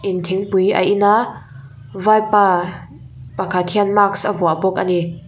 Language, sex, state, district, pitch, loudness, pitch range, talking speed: Mizo, female, Mizoram, Aizawl, 185 Hz, -16 LUFS, 160-205 Hz, 150 wpm